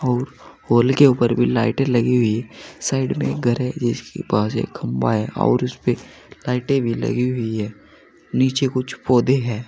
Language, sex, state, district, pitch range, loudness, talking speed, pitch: Hindi, male, Uttar Pradesh, Saharanpur, 115-130 Hz, -20 LUFS, 190 wpm, 125 Hz